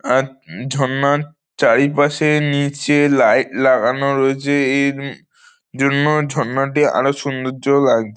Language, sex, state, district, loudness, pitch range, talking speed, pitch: Bengali, male, West Bengal, North 24 Parganas, -16 LUFS, 135-145 Hz, 110 wpm, 140 Hz